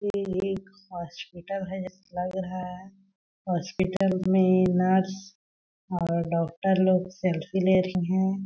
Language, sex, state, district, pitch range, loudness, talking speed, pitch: Hindi, female, Chhattisgarh, Balrampur, 180-190 Hz, -26 LUFS, 130 wpm, 185 Hz